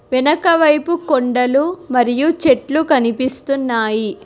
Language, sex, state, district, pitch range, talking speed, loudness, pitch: Telugu, female, Telangana, Hyderabad, 250-310 Hz, 70 wpm, -15 LUFS, 275 Hz